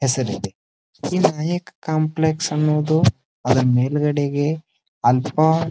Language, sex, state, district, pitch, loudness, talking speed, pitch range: Kannada, male, Karnataka, Dharwad, 150 Hz, -20 LUFS, 95 wpm, 130-160 Hz